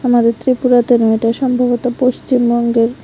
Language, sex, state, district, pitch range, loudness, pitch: Bengali, female, Tripura, West Tripura, 235-250 Hz, -14 LUFS, 245 Hz